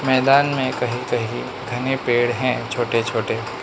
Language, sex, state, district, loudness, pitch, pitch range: Hindi, male, Manipur, Imphal West, -21 LUFS, 125 Hz, 120-130 Hz